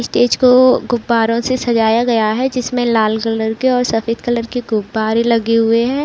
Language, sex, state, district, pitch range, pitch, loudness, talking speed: Hindi, female, Uttar Pradesh, Budaun, 225-245 Hz, 235 Hz, -15 LUFS, 190 wpm